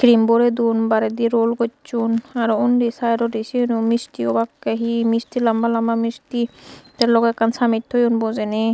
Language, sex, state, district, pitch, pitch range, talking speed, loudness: Chakma, female, Tripura, Unakoti, 230 Hz, 225-235 Hz, 170 wpm, -19 LUFS